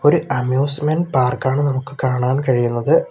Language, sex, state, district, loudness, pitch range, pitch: Malayalam, male, Kerala, Kollam, -18 LUFS, 125-145 Hz, 135 Hz